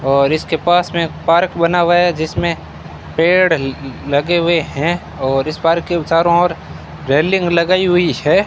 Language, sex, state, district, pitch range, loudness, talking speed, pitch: Hindi, male, Rajasthan, Bikaner, 145-175 Hz, -15 LUFS, 170 wpm, 165 Hz